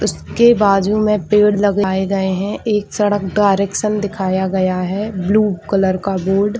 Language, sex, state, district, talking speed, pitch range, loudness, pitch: Hindi, female, Chhattisgarh, Raigarh, 165 wpm, 190-210 Hz, -16 LUFS, 200 Hz